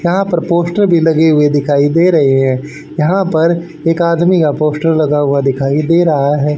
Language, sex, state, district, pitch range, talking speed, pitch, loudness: Hindi, male, Haryana, Rohtak, 145-170 Hz, 200 wpm, 160 Hz, -12 LUFS